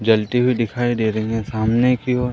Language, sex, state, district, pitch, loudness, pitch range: Hindi, male, Madhya Pradesh, Umaria, 115 Hz, -19 LUFS, 110-125 Hz